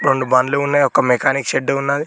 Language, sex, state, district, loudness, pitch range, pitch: Telugu, male, Telangana, Mahabubabad, -16 LUFS, 130-140 Hz, 140 Hz